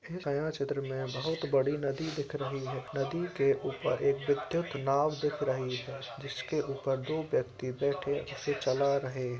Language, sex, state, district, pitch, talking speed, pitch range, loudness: Hindi, male, Uttar Pradesh, Etah, 140 Hz, 170 wpm, 135-150 Hz, -33 LUFS